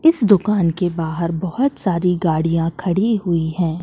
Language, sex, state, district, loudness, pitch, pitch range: Hindi, female, Madhya Pradesh, Katni, -18 LUFS, 180 Hz, 165-200 Hz